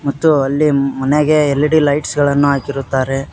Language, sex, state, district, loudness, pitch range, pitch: Kannada, male, Karnataka, Koppal, -14 LUFS, 135-150 Hz, 140 Hz